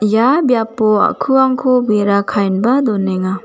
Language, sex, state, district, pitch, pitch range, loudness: Garo, female, Meghalaya, West Garo Hills, 220 Hz, 200-255 Hz, -14 LUFS